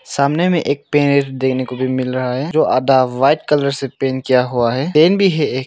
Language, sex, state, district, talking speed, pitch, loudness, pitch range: Hindi, male, Arunachal Pradesh, Longding, 235 wpm, 135 Hz, -16 LUFS, 130-145 Hz